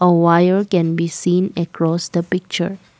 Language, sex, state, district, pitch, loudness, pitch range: English, female, Assam, Kamrup Metropolitan, 175 Hz, -17 LUFS, 170-185 Hz